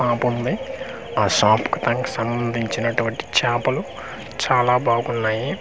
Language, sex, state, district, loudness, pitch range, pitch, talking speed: Telugu, male, Andhra Pradesh, Manyam, -21 LUFS, 115-120 Hz, 120 Hz, 85 wpm